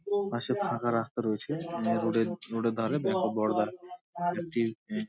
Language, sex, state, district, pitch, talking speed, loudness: Bengali, male, West Bengal, Dakshin Dinajpur, 150 Hz, 190 wpm, -31 LUFS